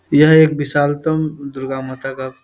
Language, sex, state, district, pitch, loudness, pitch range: Hindi, male, Bihar, Samastipur, 145 Hz, -16 LUFS, 135-155 Hz